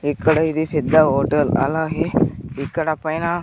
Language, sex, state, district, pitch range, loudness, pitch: Telugu, male, Andhra Pradesh, Sri Satya Sai, 145-160 Hz, -19 LUFS, 155 Hz